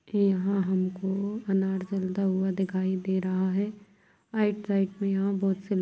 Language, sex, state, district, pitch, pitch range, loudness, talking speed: Hindi, female, Bihar, Darbhanga, 195 Hz, 190-200 Hz, -28 LUFS, 165 wpm